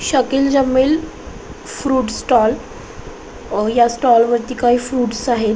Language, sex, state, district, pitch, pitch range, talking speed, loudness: Marathi, female, Maharashtra, Solapur, 245 Hz, 235-260 Hz, 110 wpm, -16 LUFS